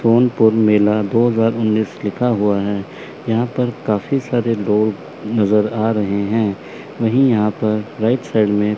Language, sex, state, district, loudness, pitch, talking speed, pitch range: Hindi, male, Chandigarh, Chandigarh, -17 LUFS, 110 Hz, 155 wpm, 105-115 Hz